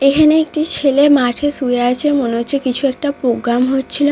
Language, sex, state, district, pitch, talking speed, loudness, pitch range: Bengali, female, West Bengal, Dakshin Dinajpur, 275 Hz, 175 wpm, -15 LUFS, 250-290 Hz